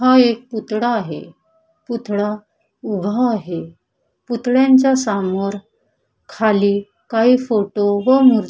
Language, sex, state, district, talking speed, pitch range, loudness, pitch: Marathi, female, Maharashtra, Chandrapur, 105 wpm, 205-250 Hz, -17 LUFS, 220 Hz